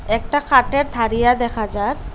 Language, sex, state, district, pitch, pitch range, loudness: Bengali, female, Assam, Hailakandi, 240 Hz, 225-275 Hz, -18 LUFS